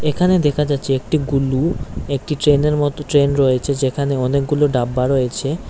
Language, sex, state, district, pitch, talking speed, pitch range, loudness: Bengali, male, Tripura, West Tripura, 140 Hz, 145 wpm, 135-150 Hz, -18 LUFS